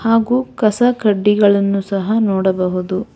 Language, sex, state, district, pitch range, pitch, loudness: Kannada, female, Karnataka, Bangalore, 195-225 Hz, 205 Hz, -15 LUFS